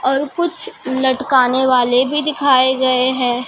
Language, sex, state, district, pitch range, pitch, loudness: Hindi, male, Maharashtra, Mumbai Suburban, 255-285 Hz, 260 Hz, -15 LUFS